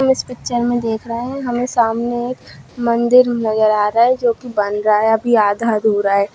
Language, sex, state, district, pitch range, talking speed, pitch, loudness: Hindi, female, Bihar, Madhepura, 215-240 Hz, 210 wpm, 235 Hz, -16 LUFS